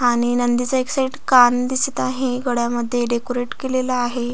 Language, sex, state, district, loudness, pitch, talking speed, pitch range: Marathi, female, Maharashtra, Solapur, -19 LUFS, 245 Hz, 165 wpm, 240-255 Hz